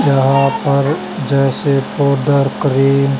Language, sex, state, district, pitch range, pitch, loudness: Hindi, male, Haryana, Charkhi Dadri, 135-140 Hz, 140 Hz, -14 LUFS